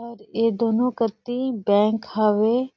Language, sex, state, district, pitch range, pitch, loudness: Surgujia, female, Chhattisgarh, Sarguja, 215-240 Hz, 230 Hz, -22 LUFS